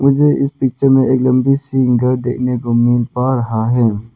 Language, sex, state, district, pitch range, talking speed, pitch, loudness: Hindi, male, Arunachal Pradesh, Papum Pare, 120-135 Hz, 190 wpm, 125 Hz, -14 LUFS